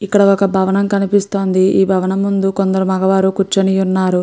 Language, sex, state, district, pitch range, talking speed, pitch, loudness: Telugu, female, Andhra Pradesh, Guntur, 190-195 Hz, 155 wpm, 195 Hz, -14 LUFS